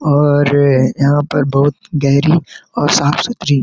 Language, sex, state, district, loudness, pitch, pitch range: Hindi, male, Chhattisgarh, Korba, -13 LUFS, 145 Hz, 140-150 Hz